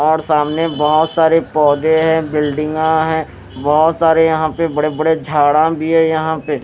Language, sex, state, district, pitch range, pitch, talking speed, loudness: Hindi, male, Haryana, Rohtak, 150-160 Hz, 155 Hz, 165 wpm, -14 LUFS